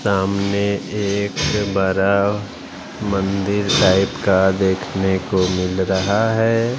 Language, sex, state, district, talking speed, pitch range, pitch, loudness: Hindi, male, Bihar, West Champaran, 95 wpm, 95-100 Hz, 100 Hz, -18 LUFS